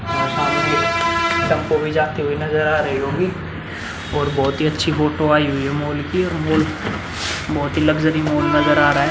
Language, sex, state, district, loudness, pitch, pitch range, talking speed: Hindi, male, Uttar Pradesh, Muzaffarnagar, -19 LUFS, 150 Hz, 145-155 Hz, 185 wpm